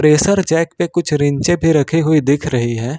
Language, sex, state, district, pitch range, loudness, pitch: Hindi, male, Jharkhand, Ranchi, 145-165 Hz, -15 LUFS, 155 Hz